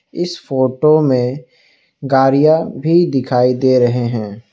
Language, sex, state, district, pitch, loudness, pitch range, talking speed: Hindi, male, Assam, Kamrup Metropolitan, 135 Hz, -14 LUFS, 125-155 Hz, 120 wpm